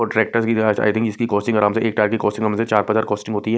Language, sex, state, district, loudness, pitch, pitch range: Hindi, male, Punjab, Kapurthala, -19 LUFS, 110 Hz, 105-115 Hz